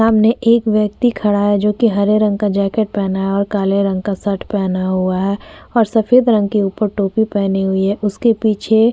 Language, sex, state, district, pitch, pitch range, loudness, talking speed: Hindi, female, Uttar Pradesh, Jyotiba Phule Nagar, 205 Hz, 200-220 Hz, -15 LUFS, 215 wpm